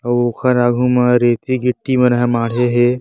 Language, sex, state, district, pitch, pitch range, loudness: Chhattisgarhi, male, Chhattisgarh, Bastar, 120 Hz, 120-125 Hz, -15 LUFS